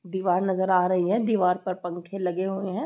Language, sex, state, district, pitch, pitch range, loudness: Hindi, female, Bihar, East Champaran, 185 Hz, 180-190 Hz, -25 LUFS